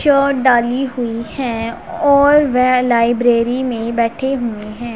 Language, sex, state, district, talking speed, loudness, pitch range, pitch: Hindi, female, Punjab, Pathankot, 120 wpm, -15 LUFS, 235-270 Hz, 245 Hz